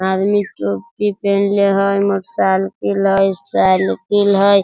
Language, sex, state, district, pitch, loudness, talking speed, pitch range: Hindi, male, Bihar, Sitamarhi, 195 Hz, -16 LUFS, 115 wpm, 155-200 Hz